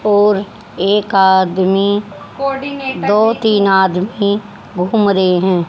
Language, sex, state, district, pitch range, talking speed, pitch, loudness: Hindi, female, Haryana, Jhajjar, 190-210 Hz, 95 wpm, 200 Hz, -14 LUFS